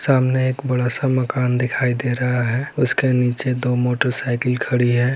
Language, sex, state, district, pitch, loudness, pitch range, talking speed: Hindi, male, Bihar, Saran, 125 Hz, -19 LUFS, 125-130 Hz, 165 wpm